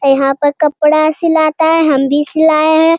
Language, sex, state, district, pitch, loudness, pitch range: Hindi, male, Bihar, Jamui, 310 Hz, -11 LUFS, 290-320 Hz